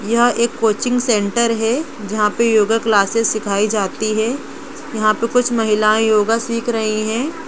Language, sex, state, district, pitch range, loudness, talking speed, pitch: Hindi, female, Jharkhand, Sahebganj, 215-235 Hz, -17 LUFS, 160 wpm, 225 Hz